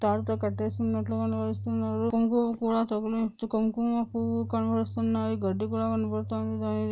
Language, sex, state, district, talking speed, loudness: Telugu, female, Andhra Pradesh, Anantapur, 115 wpm, -29 LUFS